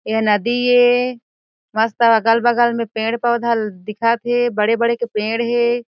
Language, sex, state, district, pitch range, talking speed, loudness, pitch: Chhattisgarhi, female, Chhattisgarh, Jashpur, 220-240 Hz, 130 wpm, -17 LUFS, 235 Hz